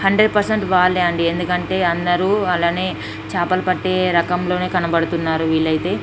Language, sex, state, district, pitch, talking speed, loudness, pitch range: Telugu, female, Andhra Pradesh, Srikakulam, 180 Hz, 110 wpm, -18 LUFS, 170-185 Hz